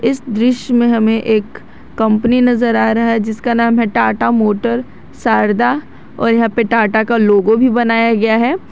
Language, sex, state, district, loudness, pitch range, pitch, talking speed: Hindi, female, Jharkhand, Garhwa, -13 LUFS, 220-240 Hz, 230 Hz, 180 wpm